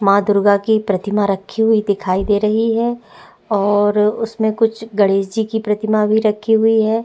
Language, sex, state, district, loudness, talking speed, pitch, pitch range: Hindi, female, Chhattisgarh, Korba, -16 LUFS, 180 wpm, 215 Hz, 205-220 Hz